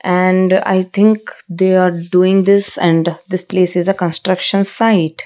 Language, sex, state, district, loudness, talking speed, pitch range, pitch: English, female, Odisha, Malkangiri, -14 LUFS, 160 wpm, 180-195 Hz, 185 Hz